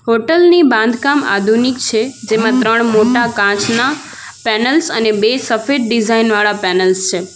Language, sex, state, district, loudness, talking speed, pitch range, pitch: Gujarati, female, Gujarat, Valsad, -13 LUFS, 130 wpm, 215-255 Hz, 225 Hz